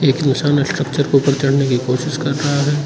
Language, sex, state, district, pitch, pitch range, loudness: Hindi, male, Arunachal Pradesh, Lower Dibang Valley, 140 Hz, 135-145 Hz, -16 LUFS